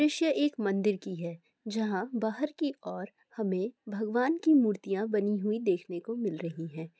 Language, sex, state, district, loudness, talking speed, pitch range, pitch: Hindi, female, Andhra Pradesh, Chittoor, -31 LUFS, 170 wpm, 190-240 Hz, 210 Hz